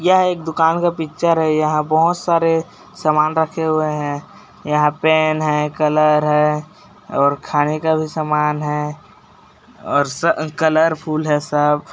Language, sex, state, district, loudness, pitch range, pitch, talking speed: Hindi, male, Chhattisgarh, Raigarh, -17 LUFS, 150-160 Hz, 155 Hz, 145 wpm